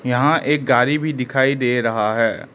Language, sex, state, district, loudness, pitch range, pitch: Hindi, male, Arunachal Pradesh, Lower Dibang Valley, -18 LUFS, 125-145 Hz, 130 Hz